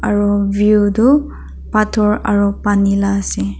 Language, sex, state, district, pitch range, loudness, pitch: Nagamese, female, Nagaland, Dimapur, 200-210 Hz, -14 LUFS, 205 Hz